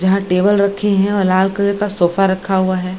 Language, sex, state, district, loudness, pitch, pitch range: Hindi, female, Bihar, Gaya, -15 LUFS, 195 Hz, 185-200 Hz